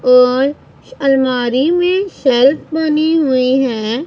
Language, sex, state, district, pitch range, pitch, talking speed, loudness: Hindi, female, Punjab, Pathankot, 255-310 Hz, 270 Hz, 105 wpm, -14 LUFS